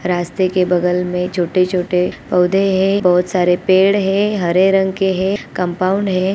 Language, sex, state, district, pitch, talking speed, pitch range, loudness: Hindi, female, Bihar, Gopalganj, 185 Hz, 160 wpm, 180-195 Hz, -15 LUFS